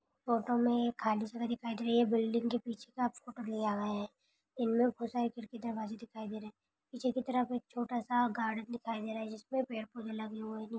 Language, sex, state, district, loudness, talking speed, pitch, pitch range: Hindi, female, Maharashtra, Dhule, -36 LUFS, 210 wpm, 235 Hz, 220-240 Hz